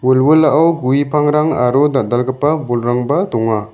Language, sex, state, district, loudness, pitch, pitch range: Garo, male, Meghalaya, West Garo Hills, -14 LUFS, 135 Hz, 125-150 Hz